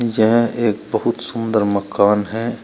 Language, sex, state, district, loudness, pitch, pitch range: Hindi, male, Uttar Pradesh, Shamli, -17 LUFS, 115 Hz, 105-115 Hz